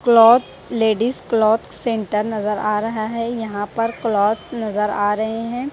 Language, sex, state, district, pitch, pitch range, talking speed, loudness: Hindi, female, Punjab, Kapurthala, 220 Hz, 210-230 Hz, 155 wpm, -19 LUFS